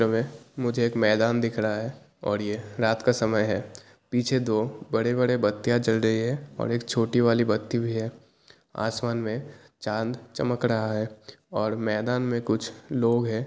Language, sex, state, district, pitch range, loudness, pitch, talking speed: Hindi, male, Bihar, Kishanganj, 110-120 Hz, -26 LUFS, 115 Hz, 170 wpm